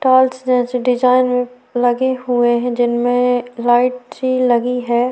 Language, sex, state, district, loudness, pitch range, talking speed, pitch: Hindi, female, Chhattisgarh, Sukma, -16 LUFS, 245-255 Hz, 130 wpm, 250 Hz